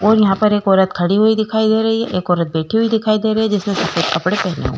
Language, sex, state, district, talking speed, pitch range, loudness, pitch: Hindi, female, Uttar Pradesh, Jalaun, 325 wpm, 180-220 Hz, -16 LUFS, 205 Hz